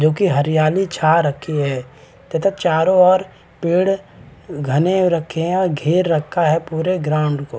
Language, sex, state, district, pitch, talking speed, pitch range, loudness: Hindi, male, Chhattisgarh, Balrampur, 160 Hz, 165 wpm, 150-180 Hz, -17 LUFS